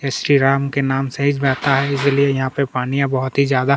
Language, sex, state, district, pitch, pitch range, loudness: Hindi, male, Chhattisgarh, Kabirdham, 140 Hz, 135-140 Hz, -17 LUFS